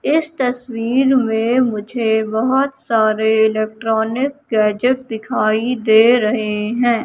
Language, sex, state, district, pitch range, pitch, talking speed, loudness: Hindi, female, Madhya Pradesh, Katni, 220-255 Hz, 230 Hz, 100 wpm, -16 LUFS